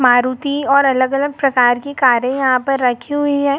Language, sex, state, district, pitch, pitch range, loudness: Hindi, female, Jharkhand, Jamtara, 270 Hz, 250-280 Hz, -15 LUFS